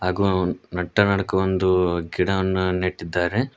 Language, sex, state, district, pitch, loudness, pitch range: Kannada, male, Karnataka, Koppal, 95 Hz, -22 LUFS, 90-95 Hz